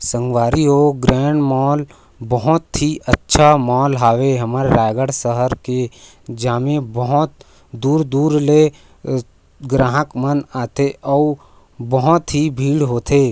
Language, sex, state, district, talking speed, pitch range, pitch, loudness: Chhattisgarhi, male, Chhattisgarh, Raigarh, 115 wpm, 125-145 Hz, 135 Hz, -16 LUFS